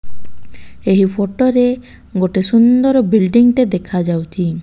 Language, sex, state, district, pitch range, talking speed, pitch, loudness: Odia, female, Odisha, Malkangiri, 170-240 Hz, 105 wpm, 190 Hz, -14 LUFS